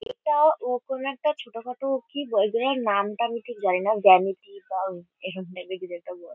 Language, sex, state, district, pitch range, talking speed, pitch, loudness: Bengali, female, West Bengal, Kolkata, 190-265 Hz, 210 wpm, 220 Hz, -25 LUFS